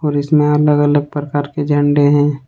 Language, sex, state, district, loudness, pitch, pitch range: Hindi, male, Jharkhand, Ranchi, -14 LUFS, 145 Hz, 145-150 Hz